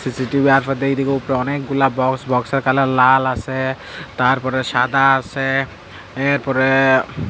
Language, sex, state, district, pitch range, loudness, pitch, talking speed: Bengali, male, Tripura, Dhalai, 130-135 Hz, -17 LUFS, 135 Hz, 130 wpm